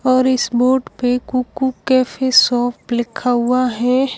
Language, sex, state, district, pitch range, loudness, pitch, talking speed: Hindi, female, Rajasthan, Jaisalmer, 245-260 Hz, -16 LUFS, 255 Hz, 145 wpm